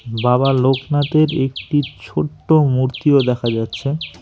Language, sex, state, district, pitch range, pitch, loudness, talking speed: Bengali, male, West Bengal, Alipurduar, 125-145 Hz, 135 Hz, -17 LUFS, 100 wpm